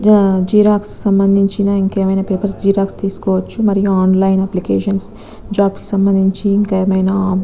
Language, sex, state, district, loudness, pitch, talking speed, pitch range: Telugu, female, Telangana, Nalgonda, -14 LUFS, 195 Hz, 130 wpm, 190-200 Hz